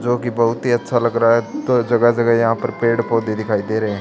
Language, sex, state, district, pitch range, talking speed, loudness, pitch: Hindi, male, Haryana, Charkhi Dadri, 115-120 Hz, 255 wpm, -17 LUFS, 115 Hz